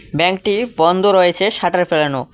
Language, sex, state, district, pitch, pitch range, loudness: Bengali, male, West Bengal, Cooch Behar, 180 Hz, 160-200 Hz, -15 LUFS